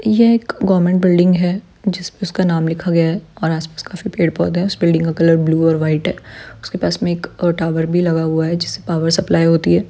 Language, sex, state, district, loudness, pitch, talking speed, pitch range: Hindi, female, Bihar, Supaul, -16 LUFS, 170 Hz, 225 wpm, 165-180 Hz